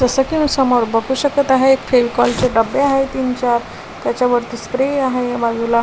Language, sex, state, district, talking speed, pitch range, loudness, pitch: Marathi, female, Maharashtra, Washim, 165 wpm, 240-270 Hz, -16 LUFS, 255 Hz